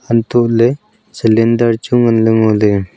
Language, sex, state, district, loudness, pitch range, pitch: Wancho, male, Arunachal Pradesh, Longding, -12 LUFS, 110-120 Hz, 115 Hz